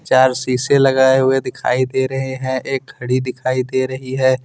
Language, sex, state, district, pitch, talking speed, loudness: Hindi, male, Jharkhand, Deoghar, 130 Hz, 190 wpm, -17 LUFS